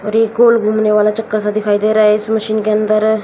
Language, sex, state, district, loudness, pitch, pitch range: Hindi, female, Haryana, Jhajjar, -13 LUFS, 215 Hz, 210-220 Hz